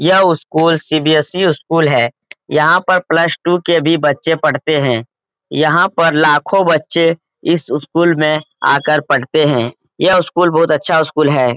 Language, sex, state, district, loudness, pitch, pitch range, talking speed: Hindi, male, Bihar, Lakhisarai, -13 LUFS, 160 Hz, 150-170 Hz, 170 wpm